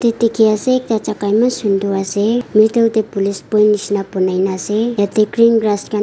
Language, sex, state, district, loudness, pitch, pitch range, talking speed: Nagamese, female, Nagaland, Kohima, -15 LUFS, 215 Hz, 200-230 Hz, 200 wpm